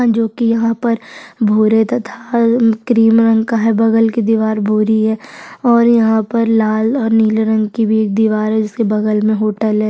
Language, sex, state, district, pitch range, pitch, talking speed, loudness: Hindi, female, Chhattisgarh, Sukma, 215-230 Hz, 225 Hz, 180 wpm, -14 LUFS